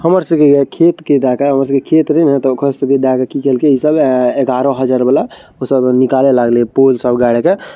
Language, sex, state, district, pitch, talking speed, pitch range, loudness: Maithili, male, Bihar, Araria, 135 Hz, 195 wpm, 130-140 Hz, -12 LUFS